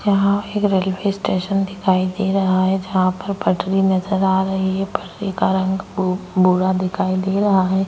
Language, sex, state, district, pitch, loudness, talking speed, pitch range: Hindi, female, Goa, North and South Goa, 190 Hz, -19 LUFS, 175 wpm, 185-195 Hz